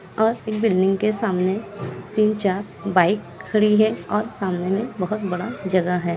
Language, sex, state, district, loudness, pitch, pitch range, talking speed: Hindi, female, Bihar, Kishanganj, -21 LUFS, 205 Hz, 185-215 Hz, 155 wpm